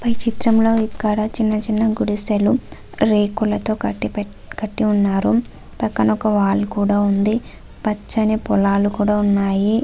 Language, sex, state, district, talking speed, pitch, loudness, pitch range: Telugu, female, Andhra Pradesh, Visakhapatnam, 120 wpm, 210 Hz, -18 LUFS, 200-220 Hz